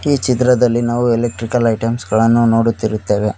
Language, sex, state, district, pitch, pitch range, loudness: Kannada, male, Karnataka, Koppal, 115 Hz, 115-120 Hz, -15 LUFS